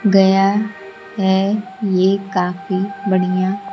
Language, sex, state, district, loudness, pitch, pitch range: Hindi, female, Bihar, Kaimur, -17 LUFS, 195 Hz, 190-200 Hz